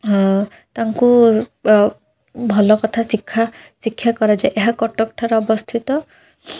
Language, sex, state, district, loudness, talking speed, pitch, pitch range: Odia, female, Odisha, Khordha, -17 LUFS, 90 wpm, 225 Hz, 215-235 Hz